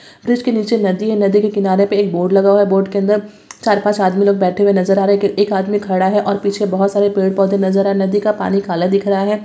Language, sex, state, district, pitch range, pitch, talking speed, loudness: Hindi, female, Bihar, Vaishali, 195-205 Hz, 200 Hz, 290 wpm, -15 LUFS